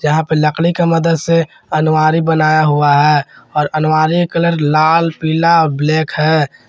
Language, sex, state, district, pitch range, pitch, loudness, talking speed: Hindi, male, Jharkhand, Garhwa, 155-165 Hz, 155 Hz, -13 LUFS, 155 wpm